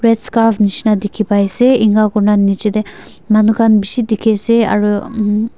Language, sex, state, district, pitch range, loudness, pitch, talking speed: Nagamese, female, Nagaland, Dimapur, 205-225 Hz, -13 LUFS, 215 Hz, 185 wpm